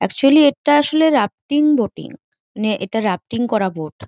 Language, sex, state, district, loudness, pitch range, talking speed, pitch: Bengali, female, West Bengal, Jhargram, -17 LUFS, 205-290 Hz, 175 wpm, 230 Hz